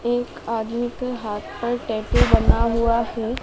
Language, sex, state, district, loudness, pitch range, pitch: Hindi, female, Madhya Pradesh, Dhar, -22 LUFS, 225-240 Hz, 230 Hz